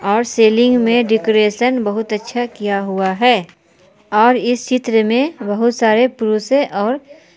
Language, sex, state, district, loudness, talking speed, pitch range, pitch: Hindi, female, Jharkhand, Palamu, -15 LUFS, 140 wpm, 210-245 Hz, 225 Hz